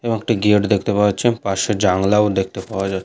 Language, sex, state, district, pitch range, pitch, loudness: Bengali, male, West Bengal, Malda, 95-105 Hz, 105 Hz, -18 LUFS